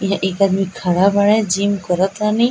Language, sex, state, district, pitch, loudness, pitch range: Bhojpuri, female, Bihar, East Champaran, 195 Hz, -16 LUFS, 190-205 Hz